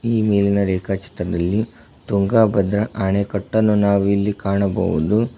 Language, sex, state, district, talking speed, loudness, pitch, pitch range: Kannada, male, Karnataka, Koppal, 110 wpm, -19 LUFS, 100 Hz, 100-105 Hz